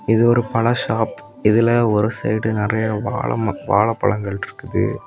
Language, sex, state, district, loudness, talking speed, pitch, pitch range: Tamil, male, Tamil Nadu, Kanyakumari, -19 LUFS, 140 wpm, 110 Hz, 105-115 Hz